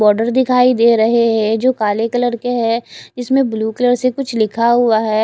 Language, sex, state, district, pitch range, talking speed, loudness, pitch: Hindi, female, Odisha, Khordha, 220-245 Hz, 205 wpm, -15 LUFS, 235 Hz